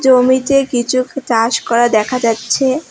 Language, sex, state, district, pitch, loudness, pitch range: Bengali, female, West Bengal, Alipurduar, 255 Hz, -14 LUFS, 230-260 Hz